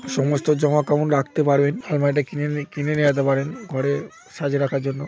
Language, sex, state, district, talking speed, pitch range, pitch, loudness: Bengali, male, West Bengal, Paschim Medinipur, 175 wpm, 140-150 Hz, 145 Hz, -21 LUFS